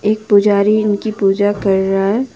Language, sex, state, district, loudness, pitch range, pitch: Hindi, female, Jharkhand, Ranchi, -14 LUFS, 195-215 Hz, 205 Hz